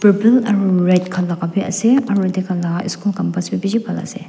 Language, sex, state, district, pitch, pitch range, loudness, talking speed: Nagamese, female, Nagaland, Dimapur, 190 Hz, 180-205 Hz, -17 LUFS, 225 wpm